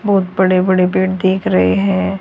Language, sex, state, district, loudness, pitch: Hindi, female, Haryana, Charkhi Dadri, -14 LUFS, 185 Hz